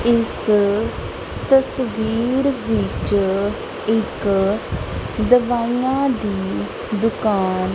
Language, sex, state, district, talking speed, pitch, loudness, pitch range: Punjabi, female, Punjab, Kapurthala, 60 wpm, 220 Hz, -20 LUFS, 200-240 Hz